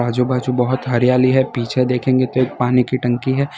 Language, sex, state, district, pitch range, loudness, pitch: Hindi, male, Gujarat, Valsad, 125-130 Hz, -17 LUFS, 125 Hz